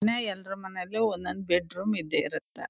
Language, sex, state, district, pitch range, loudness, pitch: Kannada, female, Karnataka, Chamarajanagar, 185-215 Hz, -30 LUFS, 195 Hz